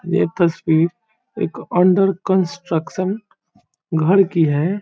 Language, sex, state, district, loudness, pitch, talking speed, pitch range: Hindi, male, Bihar, Saran, -18 LUFS, 180 Hz, 100 wpm, 160-190 Hz